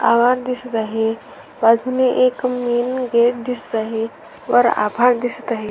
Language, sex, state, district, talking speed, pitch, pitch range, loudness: Marathi, female, Maharashtra, Sindhudurg, 135 wpm, 240 Hz, 225-250 Hz, -18 LUFS